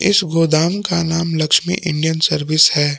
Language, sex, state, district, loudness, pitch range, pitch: Hindi, male, Jharkhand, Palamu, -15 LUFS, 155-175 Hz, 165 Hz